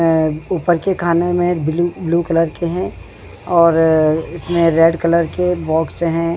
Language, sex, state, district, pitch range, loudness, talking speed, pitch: Hindi, female, Uttarakhand, Tehri Garhwal, 160-175 Hz, -16 LUFS, 160 wpm, 170 Hz